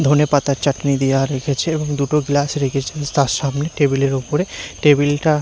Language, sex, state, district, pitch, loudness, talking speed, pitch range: Bengali, male, Odisha, Nuapada, 145 Hz, -18 LUFS, 165 wpm, 135-150 Hz